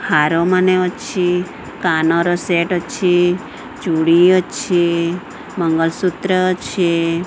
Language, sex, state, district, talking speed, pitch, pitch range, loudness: Odia, female, Odisha, Sambalpur, 75 wpm, 175 Hz, 170-185 Hz, -16 LUFS